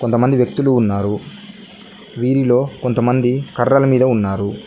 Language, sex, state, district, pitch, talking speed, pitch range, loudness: Telugu, male, Telangana, Mahabubabad, 125 Hz, 105 wpm, 120-135 Hz, -16 LUFS